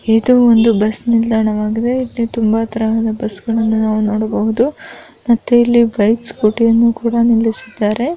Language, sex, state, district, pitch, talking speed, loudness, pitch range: Kannada, female, Karnataka, Bijapur, 225 Hz, 125 wpm, -14 LUFS, 220-235 Hz